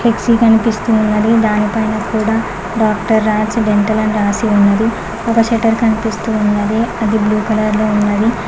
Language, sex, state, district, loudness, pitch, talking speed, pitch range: Telugu, female, Telangana, Mahabubabad, -14 LUFS, 220 Hz, 150 wpm, 215-225 Hz